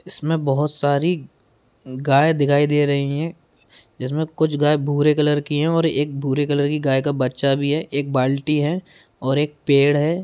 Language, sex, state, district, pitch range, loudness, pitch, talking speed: Hindi, male, Bihar, Darbhanga, 140-150 Hz, -20 LUFS, 145 Hz, 185 wpm